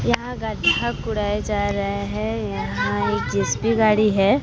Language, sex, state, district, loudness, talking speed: Hindi, female, Odisha, Sambalpur, -21 LUFS, 150 wpm